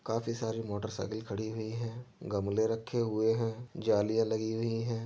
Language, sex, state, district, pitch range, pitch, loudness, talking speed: Hindi, male, Uttar Pradesh, Jyotiba Phule Nagar, 110-115 Hz, 110 Hz, -33 LUFS, 165 wpm